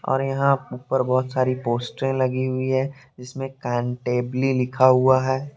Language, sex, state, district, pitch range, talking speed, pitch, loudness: Hindi, male, Jharkhand, Deoghar, 125-135 Hz, 160 wpm, 130 Hz, -22 LUFS